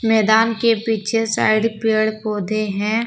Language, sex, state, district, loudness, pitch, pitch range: Hindi, female, Jharkhand, Deoghar, -18 LUFS, 220 Hz, 215-225 Hz